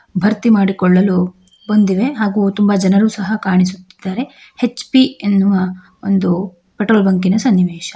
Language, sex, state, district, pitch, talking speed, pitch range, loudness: Kannada, female, Karnataka, Chamarajanagar, 195 Hz, 105 wpm, 185-215 Hz, -15 LUFS